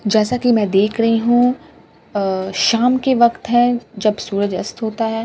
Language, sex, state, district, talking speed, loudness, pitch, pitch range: Hindi, female, Bihar, Katihar, 205 wpm, -17 LUFS, 225 Hz, 205-240 Hz